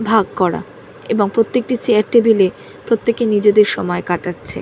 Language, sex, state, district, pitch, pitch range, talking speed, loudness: Bengali, female, West Bengal, North 24 Parganas, 215 Hz, 195-230 Hz, 145 wpm, -16 LUFS